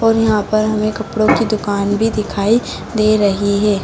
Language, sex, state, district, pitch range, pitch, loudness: Hindi, female, Bihar, Sitamarhi, 205-220 Hz, 215 Hz, -16 LUFS